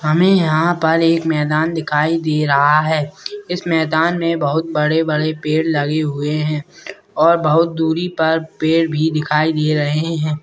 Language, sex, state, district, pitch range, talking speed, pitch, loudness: Hindi, male, Bihar, Purnia, 150-165 Hz, 155 wpm, 160 Hz, -16 LUFS